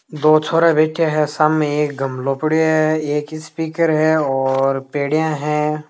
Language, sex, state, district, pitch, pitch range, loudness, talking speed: Hindi, male, Rajasthan, Nagaur, 155 Hz, 150-155 Hz, -17 LUFS, 150 wpm